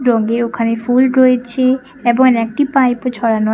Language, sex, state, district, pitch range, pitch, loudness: Bengali, female, West Bengal, Paschim Medinipur, 230-255 Hz, 245 Hz, -14 LUFS